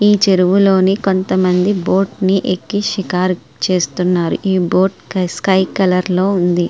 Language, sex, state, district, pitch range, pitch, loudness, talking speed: Telugu, female, Andhra Pradesh, Srikakulam, 180-195 Hz, 185 Hz, -15 LUFS, 125 wpm